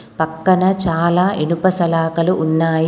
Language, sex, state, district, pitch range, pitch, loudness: Telugu, female, Telangana, Komaram Bheem, 160-185 Hz, 165 Hz, -16 LUFS